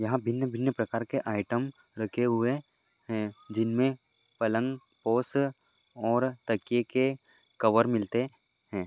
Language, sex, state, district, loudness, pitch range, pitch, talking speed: Hindi, male, Maharashtra, Dhule, -30 LUFS, 115-130 Hz, 120 Hz, 115 wpm